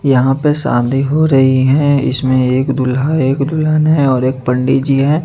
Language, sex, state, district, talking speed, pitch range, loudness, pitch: Hindi, male, Chandigarh, Chandigarh, 195 wpm, 130-145 Hz, -13 LUFS, 135 Hz